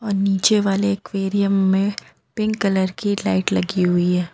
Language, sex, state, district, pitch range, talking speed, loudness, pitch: Hindi, female, Jharkhand, Ranchi, 180-200 Hz, 150 wpm, -20 LUFS, 195 Hz